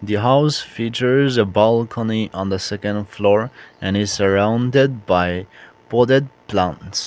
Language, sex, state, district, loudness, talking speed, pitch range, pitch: English, male, Nagaland, Kohima, -18 LUFS, 110 wpm, 100-120 Hz, 105 Hz